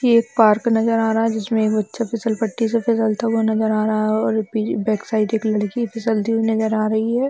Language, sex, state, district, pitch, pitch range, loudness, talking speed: Hindi, female, Bihar, Sitamarhi, 220 Hz, 215-230 Hz, -19 LUFS, 245 wpm